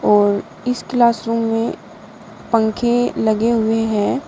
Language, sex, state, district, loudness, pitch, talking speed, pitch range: Hindi, female, Uttar Pradesh, Shamli, -18 LUFS, 225 Hz, 110 wpm, 215-235 Hz